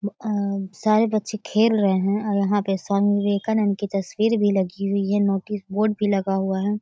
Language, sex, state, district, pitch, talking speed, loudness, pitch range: Hindi, male, Bihar, Samastipur, 205 Hz, 195 wpm, -22 LUFS, 195-210 Hz